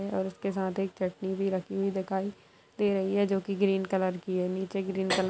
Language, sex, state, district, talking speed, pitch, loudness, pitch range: Hindi, female, Bihar, Darbhanga, 250 wpm, 190 Hz, -30 LUFS, 190-195 Hz